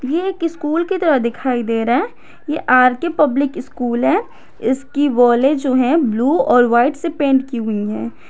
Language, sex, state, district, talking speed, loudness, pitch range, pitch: Hindi, female, Jharkhand, Garhwa, 190 wpm, -16 LUFS, 245-310 Hz, 270 Hz